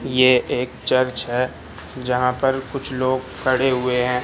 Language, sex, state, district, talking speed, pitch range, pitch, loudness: Hindi, male, Madhya Pradesh, Katni, 155 wpm, 125-130 Hz, 130 Hz, -20 LUFS